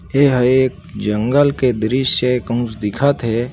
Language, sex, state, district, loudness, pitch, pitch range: Hindi, male, Chhattisgarh, Bilaspur, -16 LUFS, 125 Hz, 115-135 Hz